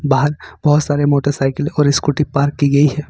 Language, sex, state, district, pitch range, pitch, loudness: Hindi, male, Jharkhand, Ranchi, 140-150 Hz, 145 Hz, -16 LUFS